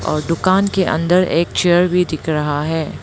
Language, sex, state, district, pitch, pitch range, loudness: Hindi, female, Arunachal Pradesh, Lower Dibang Valley, 170 Hz, 160-180 Hz, -16 LUFS